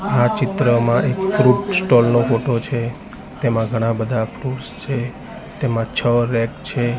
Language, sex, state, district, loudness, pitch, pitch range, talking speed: Gujarati, male, Gujarat, Gandhinagar, -19 LUFS, 120 Hz, 115-130 Hz, 145 wpm